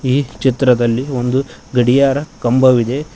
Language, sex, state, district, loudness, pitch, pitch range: Kannada, male, Karnataka, Koppal, -15 LUFS, 130 Hz, 125-135 Hz